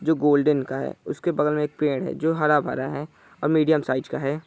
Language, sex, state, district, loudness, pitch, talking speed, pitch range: Hindi, male, Bihar, Saran, -23 LUFS, 150 Hz, 255 wpm, 145-155 Hz